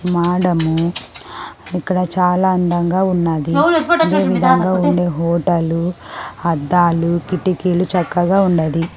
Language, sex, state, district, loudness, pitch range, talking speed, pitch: Telugu, female, Andhra Pradesh, Sri Satya Sai, -16 LUFS, 170-180 Hz, 85 wpm, 175 Hz